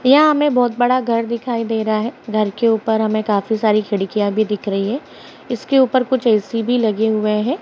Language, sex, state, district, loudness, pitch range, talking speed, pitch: Hindi, female, Uttar Pradesh, Ghazipur, -17 LUFS, 215-245 Hz, 220 wpm, 225 Hz